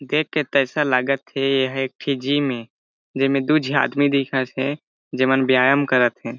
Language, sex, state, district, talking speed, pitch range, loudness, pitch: Chhattisgarhi, male, Chhattisgarh, Jashpur, 195 wpm, 130-145 Hz, -20 LUFS, 135 Hz